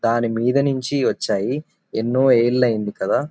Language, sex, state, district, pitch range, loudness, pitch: Telugu, male, Telangana, Nalgonda, 115-135 Hz, -20 LUFS, 125 Hz